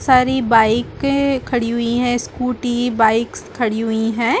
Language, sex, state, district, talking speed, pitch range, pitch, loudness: Hindi, female, Chhattisgarh, Rajnandgaon, 135 wpm, 230-250 Hz, 240 Hz, -17 LUFS